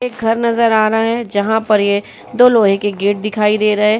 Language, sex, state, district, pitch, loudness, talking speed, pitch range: Hindi, female, Bihar, Vaishali, 215 Hz, -14 LUFS, 255 wpm, 205-230 Hz